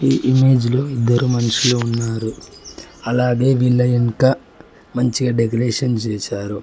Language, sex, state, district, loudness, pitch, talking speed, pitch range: Telugu, male, Telangana, Mahabubabad, -17 LUFS, 120 Hz, 110 wpm, 115-125 Hz